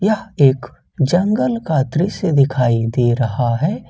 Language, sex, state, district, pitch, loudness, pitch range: Hindi, male, Jharkhand, Ranchi, 140 Hz, -17 LUFS, 125-190 Hz